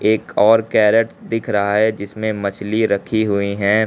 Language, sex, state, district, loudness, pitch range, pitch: Hindi, male, Uttar Pradesh, Lucknow, -17 LUFS, 100-110 Hz, 110 Hz